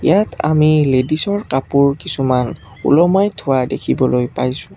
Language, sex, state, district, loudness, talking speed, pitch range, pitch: Assamese, male, Assam, Kamrup Metropolitan, -16 LUFS, 115 wpm, 130-180 Hz, 150 Hz